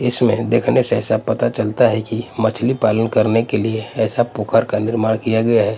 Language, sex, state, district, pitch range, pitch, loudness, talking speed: Hindi, male, Punjab, Pathankot, 110-115 Hz, 110 Hz, -17 LUFS, 210 wpm